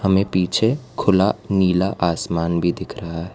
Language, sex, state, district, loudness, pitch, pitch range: Hindi, female, Gujarat, Valsad, -20 LUFS, 95 Hz, 85-95 Hz